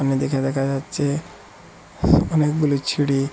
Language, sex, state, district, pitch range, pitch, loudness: Bengali, male, Assam, Hailakandi, 135-145 Hz, 135 Hz, -21 LUFS